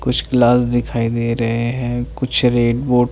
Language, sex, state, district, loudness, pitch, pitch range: Hindi, male, Chandigarh, Chandigarh, -17 LUFS, 120 Hz, 120-125 Hz